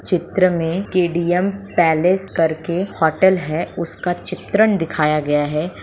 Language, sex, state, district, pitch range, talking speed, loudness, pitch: Hindi, female, Bihar, Begusarai, 160-185 Hz, 135 wpm, -18 LUFS, 175 Hz